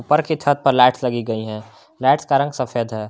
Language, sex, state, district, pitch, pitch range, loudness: Hindi, male, Jharkhand, Garhwa, 125 Hz, 115-145 Hz, -18 LUFS